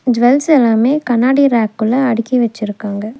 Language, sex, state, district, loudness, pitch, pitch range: Tamil, female, Tamil Nadu, Nilgiris, -13 LUFS, 240 Hz, 225-260 Hz